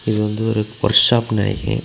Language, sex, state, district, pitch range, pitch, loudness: Tamil, male, Tamil Nadu, Kanyakumari, 105-115 Hz, 110 Hz, -16 LUFS